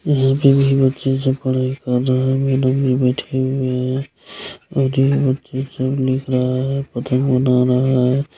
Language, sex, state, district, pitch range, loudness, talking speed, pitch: Maithili, male, Bihar, Supaul, 130-135 Hz, -18 LUFS, 180 wpm, 130 Hz